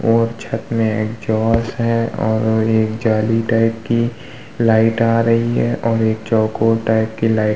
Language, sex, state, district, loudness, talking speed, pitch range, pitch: Hindi, male, Uttar Pradesh, Muzaffarnagar, -17 LUFS, 165 wpm, 110-115 Hz, 115 Hz